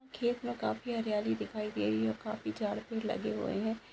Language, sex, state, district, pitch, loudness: Hindi, female, Maharashtra, Sindhudurg, 215 Hz, -35 LUFS